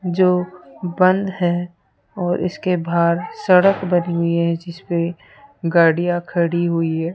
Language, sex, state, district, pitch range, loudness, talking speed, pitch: Hindi, female, Rajasthan, Jaipur, 170-180 Hz, -18 LUFS, 125 wpm, 175 Hz